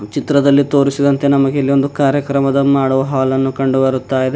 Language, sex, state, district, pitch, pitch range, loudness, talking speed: Kannada, male, Karnataka, Bidar, 140 Hz, 135-140 Hz, -14 LUFS, 150 wpm